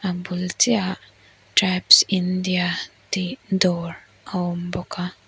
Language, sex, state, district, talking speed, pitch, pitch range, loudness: Mizo, female, Mizoram, Aizawl, 125 wpm, 180 Hz, 175-185 Hz, -21 LUFS